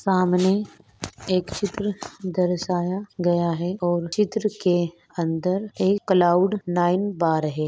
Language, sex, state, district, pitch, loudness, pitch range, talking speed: Hindi, female, Rajasthan, Nagaur, 180 Hz, -23 LUFS, 175-195 Hz, 115 wpm